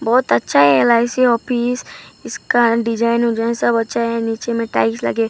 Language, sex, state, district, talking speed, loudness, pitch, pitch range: Hindi, female, Maharashtra, Gondia, 190 wpm, -16 LUFS, 230 Hz, 225-235 Hz